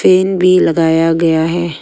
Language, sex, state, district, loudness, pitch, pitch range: Hindi, female, Arunachal Pradesh, Longding, -12 LUFS, 170 Hz, 165-185 Hz